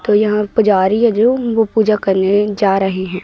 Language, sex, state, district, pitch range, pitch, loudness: Hindi, female, Madhya Pradesh, Katni, 195-220 Hz, 210 Hz, -14 LUFS